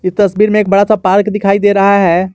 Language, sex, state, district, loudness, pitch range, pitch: Hindi, male, Jharkhand, Garhwa, -10 LUFS, 190-205 Hz, 200 Hz